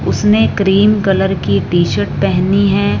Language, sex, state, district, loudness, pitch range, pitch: Hindi, female, Punjab, Fazilka, -13 LUFS, 170-200 Hz, 190 Hz